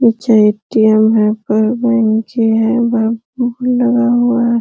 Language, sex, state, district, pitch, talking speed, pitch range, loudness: Hindi, female, Uttar Pradesh, Hamirpur, 230 Hz, 155 wpm, 220-240 Hz, -13 LUFS